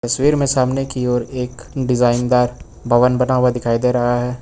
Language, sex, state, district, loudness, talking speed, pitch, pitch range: Hindi, male, Uttar Pradesh, Lucknow, -17 LUFS, 205 wpm, 125 Hz, 120-130 Hz